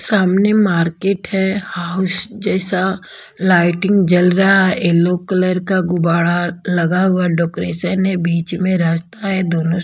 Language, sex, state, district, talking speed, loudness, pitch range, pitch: Hindi, female, Bihar, Patna, 135 wpm, -16 LUFS, 175-190 Hz, 185 Hz